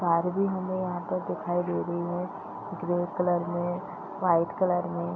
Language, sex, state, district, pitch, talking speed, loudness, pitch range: Hindi, female, Bihar, East Champaran, 175 Hz, 165 wpm, -29 LUFS, 175-185 Hz